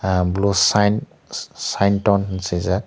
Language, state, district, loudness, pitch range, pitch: Kokborok, Tripura, Dhalai, -19 LUFS, 95-100 Hz, 100 Hz